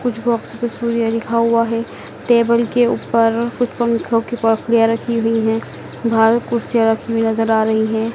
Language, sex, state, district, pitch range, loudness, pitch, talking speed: Hindi, female, Madhya Pradesh, Dhar, 225-235 Hz, -17 LUFS, 230 Hz, 175 wpm